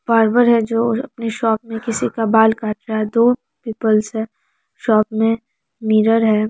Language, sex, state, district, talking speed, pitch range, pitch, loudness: Hindi, female, Bihar, Araria, 185 wpm, 220-230 Hz, 225 Hz, -17 LUFS